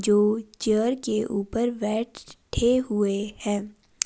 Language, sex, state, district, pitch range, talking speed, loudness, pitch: Hindi, female, Himachal Pradesh, Shimla, 205-230 Hz, 105 wpm, -25 LUFS, 215 Hz